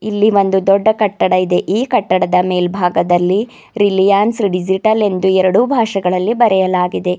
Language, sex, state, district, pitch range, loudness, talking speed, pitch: Kannada, female, Karnataka, Bidar, 180-215 Hz, -14 LUFS, 110 wpm, 195 Hz